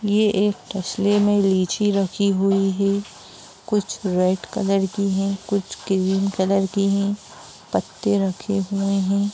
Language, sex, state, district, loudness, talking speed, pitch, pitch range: Hindi, female, Bihar, Sitamarhi, -21 LUFS, 140 wpm, 195 Hz, 195-200 Hz